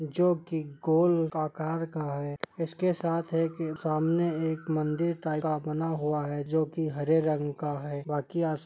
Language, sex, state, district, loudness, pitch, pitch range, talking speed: Hindi, male, Jharkhand, Sahebganj, -30 LUFS, 160 Hz, 150-165 Hz, 185 wpm